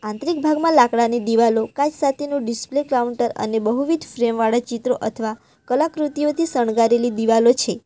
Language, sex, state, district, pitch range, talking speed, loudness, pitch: Gujarati, female, Gujarat, Valsad, 230-285 Hz, 135 wpm, -19 LUFS, 240 Hz